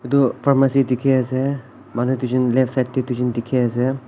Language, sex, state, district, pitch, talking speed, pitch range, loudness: Nagamese, male, Nagaland, Kohima, 130 Hz, 160 wpm, 125-135 Hz, -19 LUFS